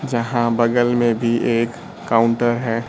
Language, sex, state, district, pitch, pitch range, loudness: Hindi, male, Bihar, Kaimur, 120 Hz, 115-120 Hz, -18 LUFS